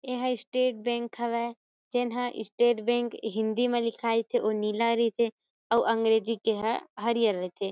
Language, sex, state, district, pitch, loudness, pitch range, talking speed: Chhattisgarhi, female, Chhattisgarh, Kabirdham, 230 Hz, -28 LUFS, 220-240 Hz, 170 wpm